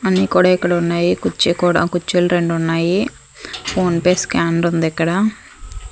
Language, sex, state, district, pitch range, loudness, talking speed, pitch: Telugu, female, Andhra Pradesh, Manyam, 165-180 Hz, -17 LUFS, 130 wpm, 175 Hz